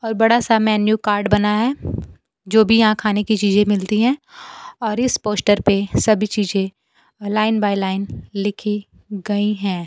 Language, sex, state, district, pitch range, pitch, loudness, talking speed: Hindi, female, Bihar, Kaimur, 205-220 Hz, 210 Hz, -18 LUFS, 165 wpm